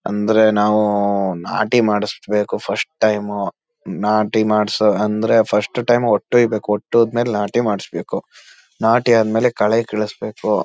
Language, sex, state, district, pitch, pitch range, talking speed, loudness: Kannada, male, Karnataka, Chamarajanagar, 105 Hz, 105-115 Hz, 120 wpm, -17 LUFS